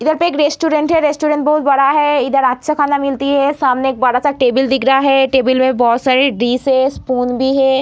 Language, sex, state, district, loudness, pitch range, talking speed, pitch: Hindi, female, Bihar, Samastipur, -14 LUFS, 260-290 Hz, 220 wpm, 270 Hz